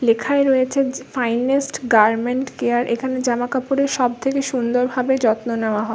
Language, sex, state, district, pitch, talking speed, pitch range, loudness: Bengali, female, West Bengal, Kolkata, 250 Hz, 150 wpm, 235-265 Hz, -19 LUFS